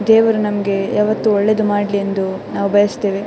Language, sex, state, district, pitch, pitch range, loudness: Kannada, female, Karnataka, Dakshina Kannada, 205 Hz, 200-215 Hz, -16 LUFS